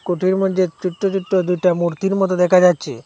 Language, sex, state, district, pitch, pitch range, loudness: Bengali, male, Assam, Hailakandi, 185 Hz, 180-190 Hz, -17 LUFS